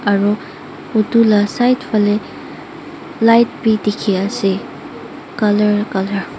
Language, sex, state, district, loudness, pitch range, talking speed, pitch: Nagamese, female, Mizoram, Aizawl, -15 LUFS, 205-245 Hz, 115 wpm, 215 Hz